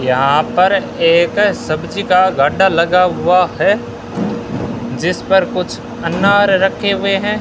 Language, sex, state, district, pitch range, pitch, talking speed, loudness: Hindi, male, Rajasthan, Bikaner, 170-200 Hz, 185 Hz, 130 wpm, -14 LUFS